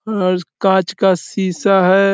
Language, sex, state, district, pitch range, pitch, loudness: Hindi, male, Uttar Pradesh, Deoria, 185-195 Hz, 190 Hz, -15 LUFS